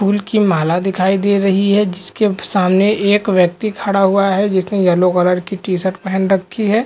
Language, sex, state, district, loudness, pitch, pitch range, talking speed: Hindi, male, Bihar, Lakhisarai, -15 LUFS, 195 Hz, 185-205 Hz, 195 wpm